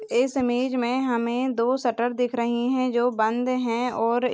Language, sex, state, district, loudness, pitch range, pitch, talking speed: Hindi, female, Chhattisgarh, Bastar, -24 LUFS, 235-255 Hz, 245 Hz, 180 wpm